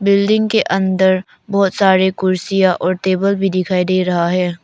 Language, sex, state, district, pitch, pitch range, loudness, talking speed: Hindi, female, Arunachal Pradesh, Papum Pare, 190 Hz, 185-195 Hz, -15 LUFS, 170 wpm